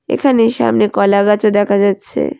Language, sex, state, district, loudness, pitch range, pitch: Bengali, female, West Bengal, Alipurduar, -13 LUFS, 190-210 Hz, 200 Hz